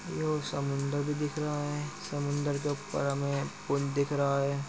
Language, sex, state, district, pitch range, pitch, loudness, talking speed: Hindi, male, Uttar Pradesh, Muzaffarnagar, 140-150 Hz, 145 Hz, -32 LUFS, 180 wpm